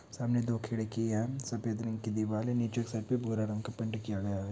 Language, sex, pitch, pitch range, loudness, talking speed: Hindi, male, 110 Hz, 110-115 Hz, -34 LUFS, 240 wpm